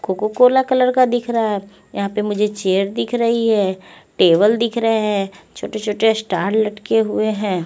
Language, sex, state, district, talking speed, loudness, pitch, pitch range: Hindi, female, Chandigarh, Chandigarh, 180 wpm, -17 LUFS, 210 Hz, 195-225 Hz